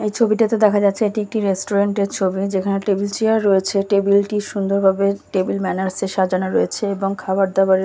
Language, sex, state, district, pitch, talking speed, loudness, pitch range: Bengali, female, West Bengal, Kolkata, 200 Hz, 185 wpm, -18 LUFS, 195-205 Hz